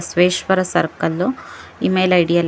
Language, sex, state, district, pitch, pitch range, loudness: Kannada, female, Karnataka, Bangalore, 180 Hz, 175-185 Hz, -18 LUFS